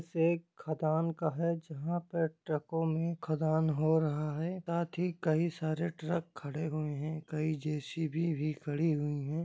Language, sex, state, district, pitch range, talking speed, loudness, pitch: Hindi, male, Jharkhand, Sahebganj, 155-165 Hz, 170 wpm, -34 LUFS, 160 Hz